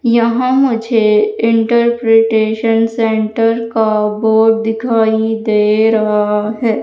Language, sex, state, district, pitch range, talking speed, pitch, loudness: Hindi, female, Madhya Pradesh, Umaria, 220-230 Hz, 90 wpm, 225 Hz, -13 LUFS